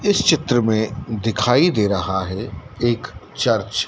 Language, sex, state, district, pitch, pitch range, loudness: Hindi, male, Madhya Pradesh, Dhar, 110 Hz, 100-120 Hz, -19 LUFS